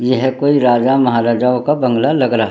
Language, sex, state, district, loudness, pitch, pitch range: Hindi, male, Uttarakhand, Tehri Garhwal, -14 LUFS, 125 Hz, 120-130 Hz